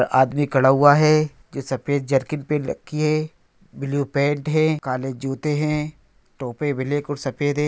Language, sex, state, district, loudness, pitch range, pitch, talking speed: Hindi, male, Bihar, Begusarai, -21 LUFS, 135-150 Hz, 145 Hz, 170 wpm